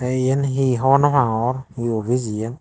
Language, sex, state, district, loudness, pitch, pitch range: Chakma, male, Tripura, Dhalai, -19 LUFS, 130 Hz, 115-135 Hz